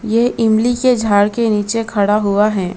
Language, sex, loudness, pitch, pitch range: Hindi, female, -15 LUFS, 220 Hz, 205-230 Hz